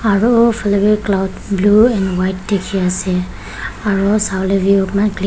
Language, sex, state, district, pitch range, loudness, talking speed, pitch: Nagamese, female, Nagaland, Kohima, 190-210 Hz, -15 LUFS, 170 wpm, 200 Hz